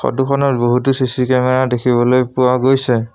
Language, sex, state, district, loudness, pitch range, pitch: Assamese, male, Assam, Sonitpur, -15 LUFS, 125-130 Hz, 125 Hz